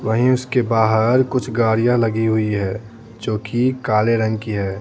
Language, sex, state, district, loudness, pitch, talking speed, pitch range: Hindi, male, Bihar, Patna, -18 LUFS, 115 Hz, 175 wpm, 110-120 Hz